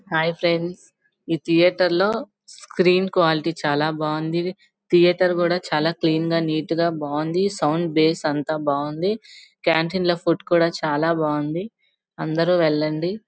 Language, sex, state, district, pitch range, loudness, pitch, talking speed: Telugu, male, Andhra Pradesh, Guntur, 155-180 Hz, -21 LUFS, 170 Hz, 125 wpm